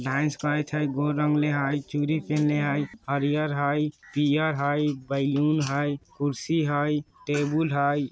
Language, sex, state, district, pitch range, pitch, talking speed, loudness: Bajjika, male, Bihar, Vaishali, 145-150 Hz, 145 Hz, 140 wpm, -26 LUFS